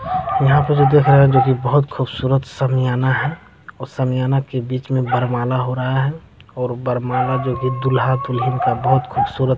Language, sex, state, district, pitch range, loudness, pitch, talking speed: Hindi, male, Bihar, Jamui, 125-135 Hz, -18 LUFS, 130 Hz, 195 wpm